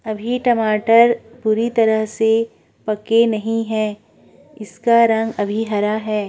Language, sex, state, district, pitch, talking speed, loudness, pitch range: Hindi, female, Uttar Pradesh, Budaun, 220 Hz, 125 wpm, -17 LUFS, 215-230 Hz